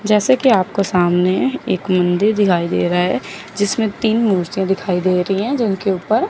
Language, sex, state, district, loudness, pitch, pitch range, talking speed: Hindi, female, Chandigarh, Chandigarh, -17 LUFS, 195 Hz, 180-215 Hz, 190 wpm